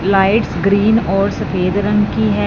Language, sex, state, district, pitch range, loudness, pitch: Hindi, female, Punjab, Fazilka, 180-205 Hz, -15 LUFS, 195 Hz